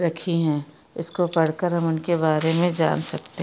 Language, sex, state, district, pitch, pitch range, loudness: Hindi, female, Chhattisgarh, Bastar, 165 Hz, 160-175 Hz, -22 LUFS